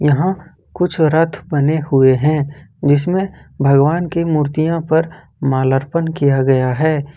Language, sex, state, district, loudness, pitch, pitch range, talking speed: Hindi, male, Jharkhand, Ranchi, -16 LUFS, 150 Hz, 140-165 Hz, 125 wpm